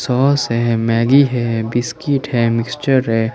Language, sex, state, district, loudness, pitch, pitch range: Hindi, male, Bihar, Kaimur, -16 LUFS, 120 Hz, 115-140 Hz